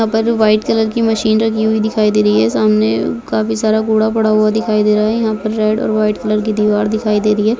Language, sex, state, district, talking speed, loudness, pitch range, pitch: Hindi, female, Bihar, Begusarai, 260 wpm, -14 LUFS, 210-220 Hz, 215 Hz